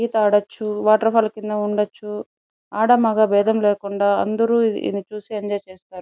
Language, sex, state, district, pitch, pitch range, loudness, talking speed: Telugu, female, Andhra Pradesh, Chittoor, 210 Hz, 205-220 Hz, -19 LUFS, 150 wpm